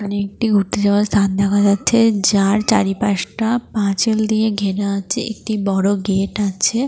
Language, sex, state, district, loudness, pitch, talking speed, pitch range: Bengali, female, Jharkhand, Jamtara, -17 LUFS, 205 Hz, 150 wpm, 200-220 Hz